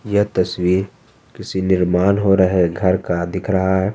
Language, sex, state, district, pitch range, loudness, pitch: Hindi, male, Jharkhand, Ranchi, 90-100 Hz, -17 LUFS, 95 Hz